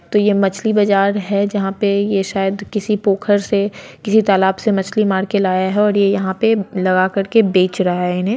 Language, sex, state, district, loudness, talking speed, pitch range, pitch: Hindi, female, Bihar, Sitamarhi, -16 LUFS, 215 wpm, 190-210 Hz, 200 Hz